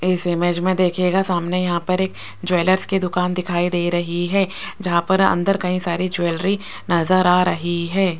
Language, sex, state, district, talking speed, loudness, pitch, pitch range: Hindi, female, Rajasthan, Jaipur, 185 wpm, -19 LUFS, 180 Hz, 175-185 Hz